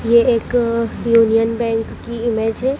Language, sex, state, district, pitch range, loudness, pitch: Hindi, female, Madhya Pradesh, Dhar, 225-235 Hz, -17 LUFS, 230 Hz